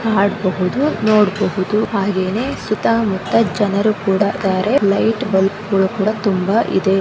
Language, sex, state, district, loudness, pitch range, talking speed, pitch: Kannada, male, Karnataka, Bijapur, -17 LUFS, 195-215 Hz, 130 wpm, 200 Hz